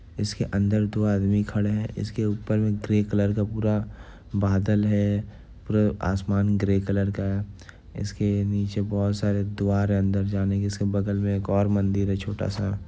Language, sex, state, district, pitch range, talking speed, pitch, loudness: Hindi, male, Bihar, Gopalganj, 100-105 Hz, 175 wpm, 100 Hz, -25 LUFS